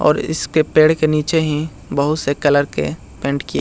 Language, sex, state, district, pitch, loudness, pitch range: Hindi, male, Bihar, Jahanabad, 150 Hz, -17 LUFS, 140-155 Hz